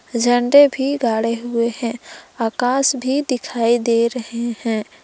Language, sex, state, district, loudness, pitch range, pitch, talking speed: Hindi, female, Jharkhand, Palamu, -18 LUFS, 230-260 Hz, 240 Hz, 130 wpm